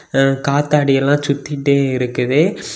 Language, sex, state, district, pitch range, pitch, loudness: Tamil, male, Tamil Nadu, Kanyakumari, 135-145 Hz, 140 Hz, -16 LUFS